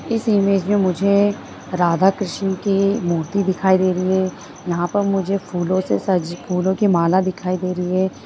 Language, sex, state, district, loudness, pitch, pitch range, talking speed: Hindi, female, Bihar, Bhagalpur, -19 LUFS, 190 Hz, 180-195 Hz, 180 wpm